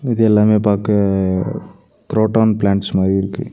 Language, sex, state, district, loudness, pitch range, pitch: Tamil, male, Tamil Nadu, Nilgiris, -16 LUFS, 95-110 Hz, 105 Hz